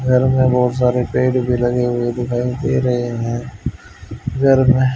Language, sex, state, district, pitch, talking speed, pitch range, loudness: Hindi, male, Haryana, Rohtak, 125 Hz, 155 wpm, 120-130 Hz, -17 LUFS